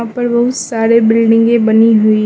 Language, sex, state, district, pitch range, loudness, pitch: Hindi, female, Mizoram, Aizawl, 225-235 Hz, -11 LUFS, 230 Hz